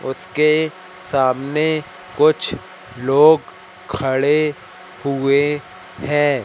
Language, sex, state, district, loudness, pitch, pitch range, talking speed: Hindi, male, Madhya Pradesh, Katni, -18 LUFS, 150 Hz, 140-180 Hz, 65 wpm